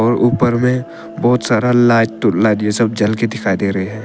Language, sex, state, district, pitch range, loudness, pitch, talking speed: Hindi, male, Arunachal Pradesh, Papum Pare, 105-120 Hz, -15 LUFS, 115 Hz, 220 wpm